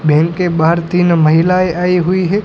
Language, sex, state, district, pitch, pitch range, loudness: Hindi, female, Gujarat, Gandhinagar, 175 Hz, 165-180 Hz, -12 LUFS